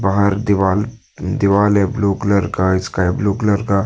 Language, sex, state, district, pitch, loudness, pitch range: Hindi, male, Jharkhand, Deoghar, 100 Hz, -16 LUFS, 95-105 Hz